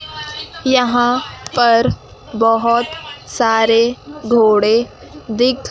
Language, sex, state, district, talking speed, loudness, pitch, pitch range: Hindi, female, Chandigarh, Chandigarh, 65 wpm, -15 LUFS, 240 Hz, 225-255 Hz